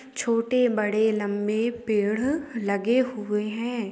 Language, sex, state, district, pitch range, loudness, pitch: Hindi, female, Uttarakhand, Tehri Garhwal, 210-245 Hz, -25 LUFS, 225 Hz